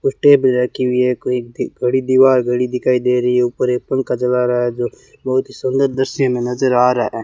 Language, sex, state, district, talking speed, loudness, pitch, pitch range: Hindi, male, Rajasthan, Bikaner, 240 wpm, -16 LUFS, 125 Hz, 125-130 Hz